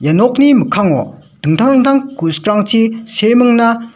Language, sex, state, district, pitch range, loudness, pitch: Garo, male, Meghalaya, West Garo Hills, 180-245 Hz, -12 LUFS, 225 Hz